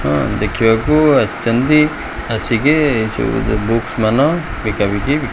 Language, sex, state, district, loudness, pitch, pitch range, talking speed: Odia, male, Odisha, Khordha, -15 LUFS, 115 Hz, 110-145 Hz, 125 wpm